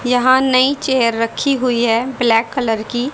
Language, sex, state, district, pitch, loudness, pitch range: Hindi, female, Haryana, Rohtak, 250 Hz, -15 LUFS, 230-260 Hz